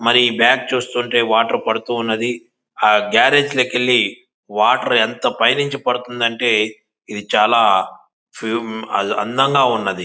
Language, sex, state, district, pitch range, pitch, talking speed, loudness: Telugu, male, Andhra Pradesh, Visakhapatnam, 110-125 Hz, 120 Hz, 100 wpm, -16 LUFS